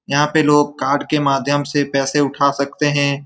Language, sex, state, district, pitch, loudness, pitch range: Hindi, male, Bihar, Saran, 145 Hz, -17 LUFS, 140-145 Hz